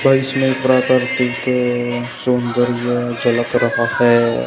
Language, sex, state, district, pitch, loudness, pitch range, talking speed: Hindi, male, Haryana, Jhajjar, 120 Hz, -17 LUFS, 120-130 Hz, 135 wpm